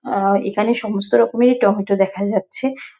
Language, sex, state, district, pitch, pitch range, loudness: Bengali, female, West Bengal, Dakshin Dinajpur, 200 Hz, 195-235 Hz, -17 LUFS